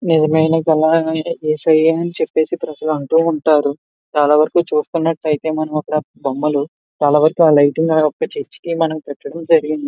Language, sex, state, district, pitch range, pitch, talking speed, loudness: Telugu, male, Andhra Pradesh, Visakhapatnam, 150-165 Hz, 155 Hz, 105 wpm, -16 LUFS